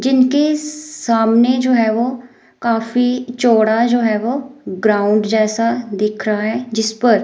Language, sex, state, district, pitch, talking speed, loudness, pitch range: Hindi, female, Himachal Pradesh, Shimla, 235 Hz, 140 wpm, -16 LUFS, 220-250 Hz